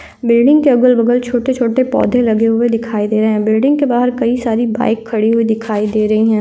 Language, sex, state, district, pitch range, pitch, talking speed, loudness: Hindi, female, Chhattisgarh, Korba, 220-245 Hz, 235 Hz, 225 wpm, -13 LUFS